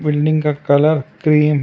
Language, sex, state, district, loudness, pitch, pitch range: Hindi, male, Karnataka, Bangalore, -15 LUFS, 150 Hz, 145-155 Hz